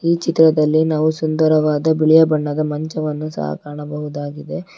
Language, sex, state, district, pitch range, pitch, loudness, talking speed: Kannada, female, Karnataka, Bangalore, 150-160 Hz, 155 Hz, -17 LUFS, 115 wpm